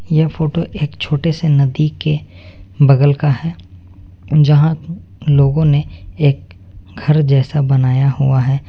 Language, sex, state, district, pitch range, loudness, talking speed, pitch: Hindi, male, West Bengal, Alipurduar, 95-150 Hz, -14 LUFS, 130 wpm, 140 Hz